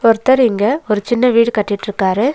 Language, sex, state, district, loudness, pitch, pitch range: Tamil, female, Tamil Nadu, Nilgiris, -14 LUFS, 230 Hz, 205-250 Hz